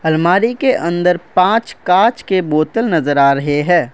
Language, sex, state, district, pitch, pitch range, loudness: Hindi, male, Assam, Kamrup Metropolitan, 175 Hz, 155-200 Hz, -14 LUFS